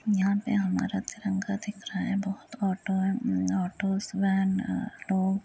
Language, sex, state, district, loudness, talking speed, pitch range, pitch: Hindi, female, Uttar Pradesh, Jyotiba Phule Nagar, -29 LUFS, 155 wpm, 190-205 Hz, 195 Hz